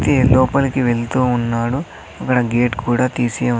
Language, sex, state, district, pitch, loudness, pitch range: Telugu, male, Andhra Pradesh, Sri Satya Sai, 125 Hz, -17 LUFS, 120-130 Hz